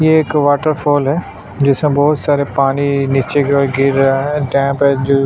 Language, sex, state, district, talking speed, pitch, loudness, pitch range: Hindi, male, Chhattisgarh, Sukma, 205 wpm, 140 Hz, -14 LUFS, 135-145 Hz